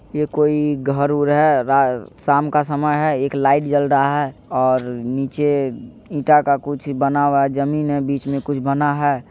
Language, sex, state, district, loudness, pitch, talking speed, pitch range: Maithili, male, Bihar, Supaul, -18 LUFS, 140 Hz, 195 wpm, 140-145 Hz